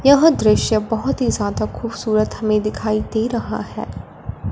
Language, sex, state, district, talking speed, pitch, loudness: Hindi, female, Punjab, Fazilka, 145 wpm, 215 Hz, -19 LUFS